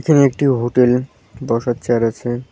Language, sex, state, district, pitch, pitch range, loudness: Bengali, male, West Bengal, Cooch Behar, 125 Hz, 120-130 Hz, -17 LUFS